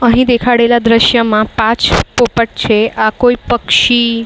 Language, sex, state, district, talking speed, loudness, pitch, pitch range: Gujarati, female, Maharashtra, Mumbai Suburban, 125 wpm, -11 LUFS, 235 Hz, 225-240 Hz